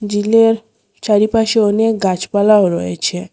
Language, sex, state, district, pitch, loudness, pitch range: Bengali, female, Assam, Hailakandi, 210 Hz, -14 LUFS, 190-225 Hz